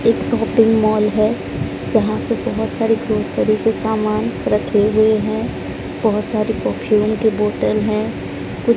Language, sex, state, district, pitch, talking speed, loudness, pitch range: Hindi, male, Odisha, Sambalpur, 215 Hz, 150 wpm, -18 LUFS, 215-220 Hz